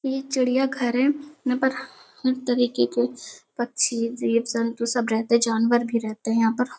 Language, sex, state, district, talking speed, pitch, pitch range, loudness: Hindi, female, Uttar Pradesh, Hamirpur, 185 wpm, 240 Hz, 230-255 Hz, -23 LUFS